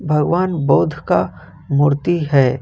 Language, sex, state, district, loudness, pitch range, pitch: Hindi, male, Jharkhand, Ranchi, -16 LUFS, 140-170 Hz, 150 Hz